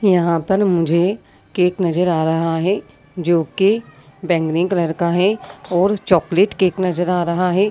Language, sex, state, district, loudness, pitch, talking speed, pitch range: Hindi, female, Uttar Pradesh, Jyotiba Phule Nagar, -18 LUFS, 175 Hz, 155 wpm, 165-190 Hz